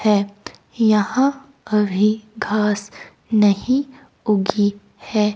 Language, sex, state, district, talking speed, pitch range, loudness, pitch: Hindi, female, Himachal Pradesh, Shimla, 80 wpm, 205-225 Hz, -19 LUFS, 210 Hz